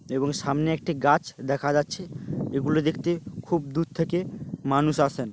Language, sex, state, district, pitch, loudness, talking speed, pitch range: Bengali, male, West Bengal, Paschim Medinipur, 150 Hz, -26 LUFS, 145 wpm, 140-165 Hz